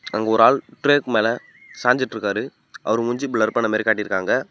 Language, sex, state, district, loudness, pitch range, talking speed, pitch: Tamil, male, Tamil Nadu, Namakkal, -20 LUFS, 110-120 Hz, 175 wpm, 115 Hz